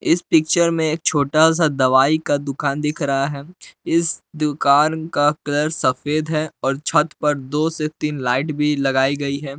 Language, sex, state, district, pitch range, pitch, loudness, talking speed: Hindi, male, Jharkhand, Palamu, 140-155 Hz, 150 Hz, -19 LUFS, 170 wpm